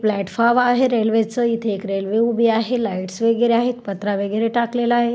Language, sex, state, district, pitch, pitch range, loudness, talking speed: Marathi, female, Maharashtra, Solapur, 230 Hz, 210-240 Hz, -19 LUFS, 175 wpm